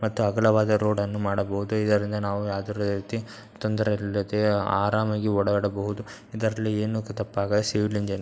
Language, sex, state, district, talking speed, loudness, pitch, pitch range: Kannada, male, Karnataka, Dakshina Kannada, 140 wpm, -26 LUFS, 105 Hz, 100-110 Hz